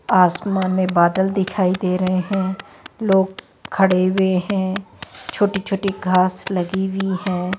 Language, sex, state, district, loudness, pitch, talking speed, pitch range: Hindi, female, Rajasthan, Jaipur, -19 LUFS, 190 Hz, 135 wpm, 185-195 Hz